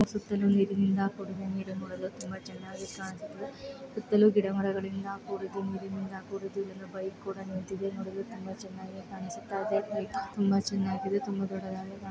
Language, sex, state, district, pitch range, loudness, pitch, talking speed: Kannada, female, Karnataka, Chamarajanagar, 190-200 Hz, -33 LUFS, 195 Hz, 130 wpm